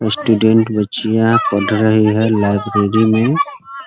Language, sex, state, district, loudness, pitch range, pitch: Hindi, male, Bihar, Muzaffarpur, -14 LUFS, 105-115 Hz, 110 Hz